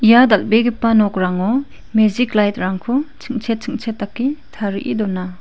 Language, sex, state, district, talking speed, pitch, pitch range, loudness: Garo, female, Meghalaya, West Garo Hills, 110 wpm, 220 Hz, 205-245 Hz, -17 LUFS